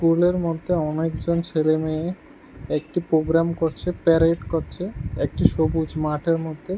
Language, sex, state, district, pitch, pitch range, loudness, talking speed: Bengali, male, Tripura, West Tripura, 165 Hz, 160-170 Hz, -23 LUFS, 125 wpm